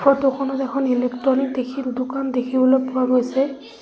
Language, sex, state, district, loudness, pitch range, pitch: Assamese, female, Assam, Sonitpur, -20 LUFS, 255-270 Hz, 265 Hz